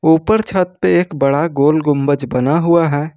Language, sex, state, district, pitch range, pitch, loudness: Hindi, male, Jharkhand, Ranchi, 145-170 Hz, 155 Hz, -14 LUFS